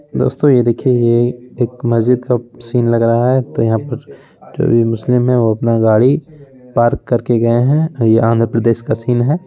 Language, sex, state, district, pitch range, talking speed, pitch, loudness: Hindi, male, Bihar, Begusarai, 115-130 Hz, 175 wpm, 120 Hz, -14 LUFS